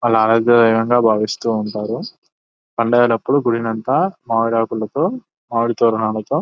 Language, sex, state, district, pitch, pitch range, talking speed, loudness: Telugu, male, Telangana, Nalgonda, 115 Hz, 110-120 Hz, 75 wpm, -17 LUFS